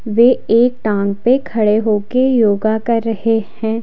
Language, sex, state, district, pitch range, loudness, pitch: Hindi, female, Himachal Pradesh, Shimla, 215-235 Hz, -15 LUFS, 225 Hz